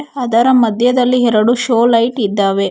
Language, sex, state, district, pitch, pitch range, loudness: Kannada, female, Karnataka, Bangalore, 235 Hz, 220-250 Hz, -13 LUFS